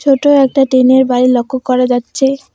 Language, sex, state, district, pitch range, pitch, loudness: Bengali, female, West Bengal, Alipurduar, 250-270 Hz, 260 Hz, -11 LUFS